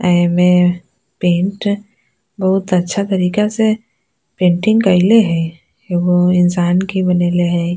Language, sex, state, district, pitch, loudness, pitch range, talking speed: Bajjika, female, Bihar, Vaishali, 180 Hz, -14 LUFS, 175-200 Hz, 110 wpm